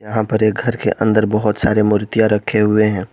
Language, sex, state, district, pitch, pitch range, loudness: Hindi, male, Jharkhand, Garhwa, 105 Hz, 105-110 Hz, -16 LUFS